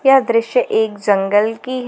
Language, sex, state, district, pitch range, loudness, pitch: Hindi, female, Jharkhand, Garhwa, 210-250 Hz, -16 LUFS, 230 Hz